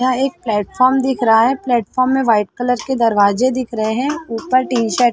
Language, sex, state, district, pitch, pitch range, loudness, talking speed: Hindi, female, Chhattisgarh, Bilaspur, 245 Hz, 225-255 Hz, -16 LUFS, 220 wpm